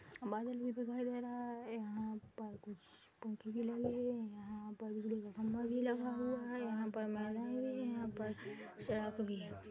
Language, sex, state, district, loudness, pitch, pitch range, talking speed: Hindi, female, Chhattisgarh, Bilaspur, -43 LUFS, 225 Hz, 215-245 Hz, 180 wpm